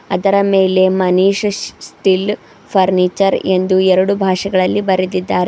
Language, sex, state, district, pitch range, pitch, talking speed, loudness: Kannada, female, Karnataka, Bidar, 185-195 Hz, 190 Hz, 100 wpm, -14 LUFS